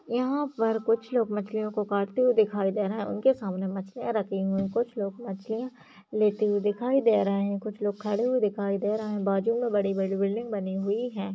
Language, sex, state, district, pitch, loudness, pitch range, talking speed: Hindi, female, Uttarakhand, Tehri Garhwal, 210 Hz, -28 LUFS, 200-230 Hz, 215 wpm